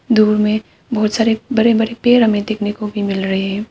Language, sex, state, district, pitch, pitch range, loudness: Hindi, female, Arunachal Pradesh, Papum Pare, 215 Hz, 205-225 Hz, -16 LUFS